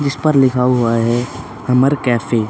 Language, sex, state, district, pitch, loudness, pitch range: Hindi, male, Chhattisgarh, Korba, 125 Hz, -15 LUFS, 115-135 Hz